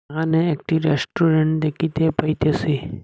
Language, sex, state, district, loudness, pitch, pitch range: Bengali, male, Assam, Hailakandi, -20 LUFS, 155 Hz, 150-160 Hz